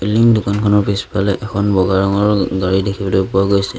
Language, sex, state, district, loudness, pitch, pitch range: Assamese, male, Assam, Sonitpur, -15 LUFS, 100 Hz, 95-105 Hz